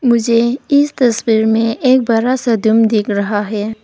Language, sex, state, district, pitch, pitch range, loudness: Hindi, female, Arunachal Pradesh, Papum Pare, 230 Hz, 220-250 Hz, -14 LUFS